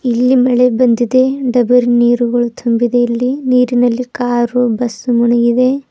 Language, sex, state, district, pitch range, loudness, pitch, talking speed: Kannada, female, Karnataka, Bidar, 240-250 Hz, -13 LUFS, 245 Hz, 110 wpm